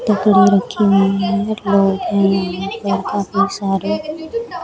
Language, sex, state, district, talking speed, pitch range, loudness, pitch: Hindi, male, Chandigarh, Chandigarh, 130 wpm, 195-210 Hz, -16 LUFS, 195 Hz